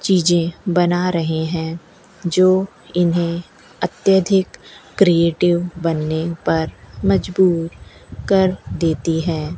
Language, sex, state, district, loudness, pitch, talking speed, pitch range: Hindi, female, Rajasthan, Bikaner, -18 LUFS, 170 Hz, 90 wpm, 160-180 Hz